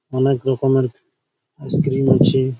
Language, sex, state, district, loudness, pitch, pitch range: Bengali, male, West Bengal, Malda, -18 LUFS, 135 Hz, 130-135 Hz